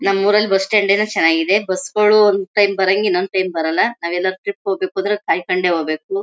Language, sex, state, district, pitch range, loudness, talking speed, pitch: Kannada, female, Karnataka, Mysore, 180-210 Hz, -16 LUFS, 185 wpm, 195 Hz